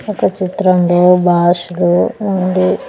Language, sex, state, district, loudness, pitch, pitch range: Telugu, female, Andhra Pradesh, Sri Satya Sai, -13 LUFS, 180 Hz, 175-185 Hz